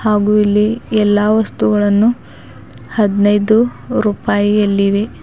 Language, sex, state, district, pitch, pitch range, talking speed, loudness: Kannada, female, Karnataka, Bidar, 210 Hz, 205-215 Hz, 70 wpm, -14 LUFS